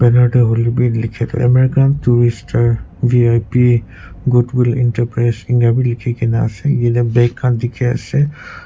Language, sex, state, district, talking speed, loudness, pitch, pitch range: Nagamese, male, Nagaland, Kohima, 140 wpm, -15 LUFS, 120 Hz, 115-125 Hz